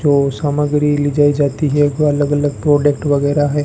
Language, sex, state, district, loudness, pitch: Hindi, male, Rajasthan, Bikaner, -15 LUFS, 145 Hz